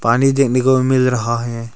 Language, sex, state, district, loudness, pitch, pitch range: Hindi, male, Arunachal Pradesh, Longding, -15 LUFS, 125 Hz, 120-130 Hz